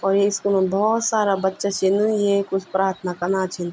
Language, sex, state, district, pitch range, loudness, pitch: Garhwali, female, Uttarakhand, Tehri Garhwal, 190-200 Hz, -21 LUFS, 195 Hz